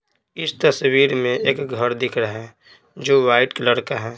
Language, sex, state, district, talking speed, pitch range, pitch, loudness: Hindi, male, Bihar, Patna, 185 wpm, 120-135 Hz, 125 Hz, -19 LUFS